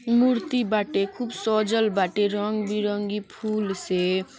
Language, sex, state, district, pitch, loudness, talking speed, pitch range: Bhojpuri, female, Uttar Pradesh, Ghazipur, 210 Hz, -25 LUFS, 135 wpm, 205-225 Hz